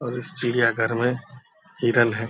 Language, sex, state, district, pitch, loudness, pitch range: Hindi, male, Bihar, Purnia, 120 Hz, -23 LUFS, 115-130 Hz